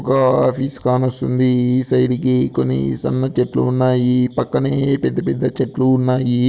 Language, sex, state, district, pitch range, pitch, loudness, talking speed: Telugu, male, Andhra Pradesh, Anantapur, 125-130 Hz, 130 Hz, -17 LUFS, 130 wpm